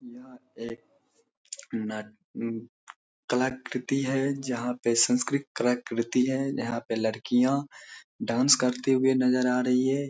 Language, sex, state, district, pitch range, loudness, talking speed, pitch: Hindi, male, Bihar, Darbhanga, 115-135 Hz, -27 LUFS, 125 wpm, 125 Hz